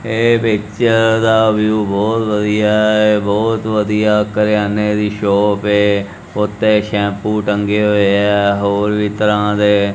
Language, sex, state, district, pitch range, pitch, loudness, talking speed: Punjabi, male, Punjab, Kapurthala, 105-110 Hz, 105 Hz, -14 LUFS, 135 wpm